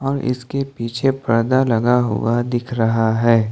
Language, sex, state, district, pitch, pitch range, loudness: Hindi, male, Jharkhand, Ranchi, 120 Hz, 115-130 Hz, -18 LUFS